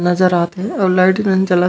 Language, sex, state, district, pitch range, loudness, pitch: Chhattisgarhi, male, Chhattisgarh, Raigarh, 180-190 Hz, -15 LUFS, 185 Hz